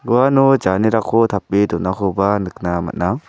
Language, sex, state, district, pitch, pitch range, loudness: Garo, male, Meghalaya, South Garo Hills, 105 Hz, 95-115 Hz, -17 LUFS